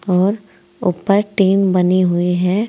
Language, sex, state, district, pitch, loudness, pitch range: Hindi, female, Uttar Pradesh, Saharanpur, 185 Hz, -16 LUFS, 180-200 Hz